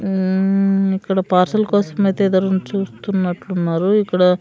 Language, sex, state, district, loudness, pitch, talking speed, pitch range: Telugu, female, Andhra Pradesh, Sri Satya Sai, -17 LUFS, 190 Hz, 110 wpm, 185-195 Hz